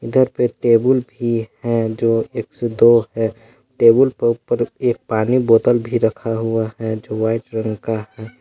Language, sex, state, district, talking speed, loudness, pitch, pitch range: Hindi, male, Jharkhand, Palamu, 165 wpm, -18 LUFS, 115 Hz, 110-120 Hz